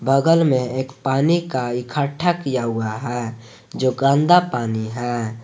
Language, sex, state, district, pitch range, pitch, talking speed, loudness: Hindi, male, Jharkhand, Garhwa, 120-140 Hz, 130 Hz, 145 wpm, -20 LUFS